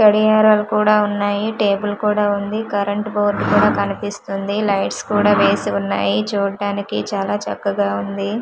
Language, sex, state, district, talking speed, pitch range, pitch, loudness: Telugu, female, Andhra Pradesh, Manyam, 130 wpm, 200-210 Hz, 205 Hz, -18 LUFS